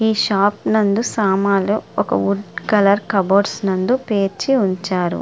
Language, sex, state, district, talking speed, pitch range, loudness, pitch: Telugu, female, Andhra Pradesh, Srikakulam, 125 wpm, 195-210 Hz, -17 LUFS, 200 Hz